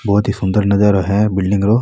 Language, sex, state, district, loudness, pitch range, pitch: Rajasthani, male, Rajasthan, Nagaur, -15 LUFS, 100-105 Hz, 100 Hz